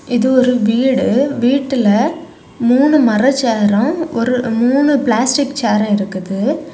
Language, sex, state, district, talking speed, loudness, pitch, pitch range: Tamil, female, Tamil Nadu, Kanyakumari, 105 wpm, -14 LUFS, 250 Hz, 225-280 Hz